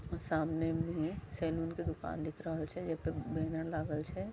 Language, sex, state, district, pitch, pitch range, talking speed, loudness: Maithili, female, Bihar, Vaishali, 160 Hz, 155-165 Hz, 180 wpm, -38 LUFS